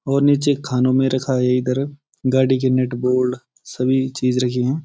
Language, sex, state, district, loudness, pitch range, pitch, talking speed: Hindi, male, Uttarakhand, Uttarkashi, -19 LUFS, 125-135 Hz, 130 Hz, 185 wpm